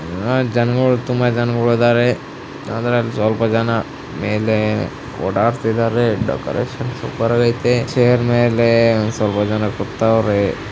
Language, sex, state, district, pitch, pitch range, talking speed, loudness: Kannada, female, Karnataka, Raichur, 115 Hz, 110-120 Hz, 105 wpm, -17 LUFS